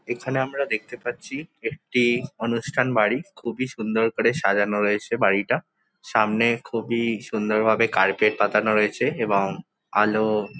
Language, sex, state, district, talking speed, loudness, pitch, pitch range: Bengali, male, West Bengal, Jhargram, 125 wpm, -23 LUFS, 110 Hz, 105-120 Hz